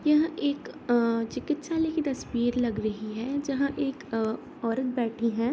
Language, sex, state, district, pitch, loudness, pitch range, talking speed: Hindi, female, Bihar, Darbhanga, 260 Hz, -29 LUFS, 230-290 Hz, 160 wpm